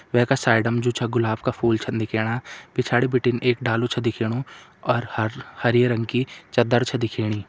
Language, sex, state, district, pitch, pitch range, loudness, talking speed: Hindi, male, Uttarakhand, Tehri Garhwal, 120 Hz, 115-125 Hz, -23 LUFS, 190 wpm